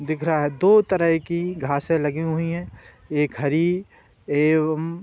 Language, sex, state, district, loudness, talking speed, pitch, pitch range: Hindi, male, Uttar Pradesh, Budaun, -22 LUFS, 165 wpm, 160 Hz, 150-170 Hz